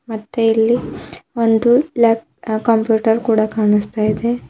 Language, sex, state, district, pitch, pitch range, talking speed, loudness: Kannada, female, Karnataka, Bidar, 225 Hz, 220-235 Hz, 120 wpm, -16 LUFS